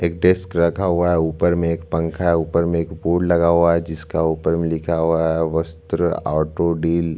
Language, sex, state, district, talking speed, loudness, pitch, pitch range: Hindi, male, Chhattisgarh, Bastar, 225 wpm, -19 LUFS, 85 Hz, 80-85 Hz